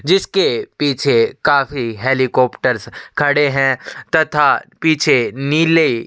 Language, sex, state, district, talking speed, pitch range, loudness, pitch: Hindi, male, Chhattisgarh, Sukma, 90 wpm, 130-165 Hz, -15 LUFS, 145 Hz